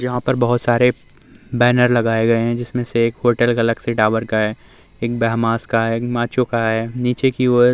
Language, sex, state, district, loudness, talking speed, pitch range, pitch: Hindi, male, Uttar Pradesh, Muzaffarnagar, -17 LUFS, 215 wpm, 115-125 Hz, 120 Hz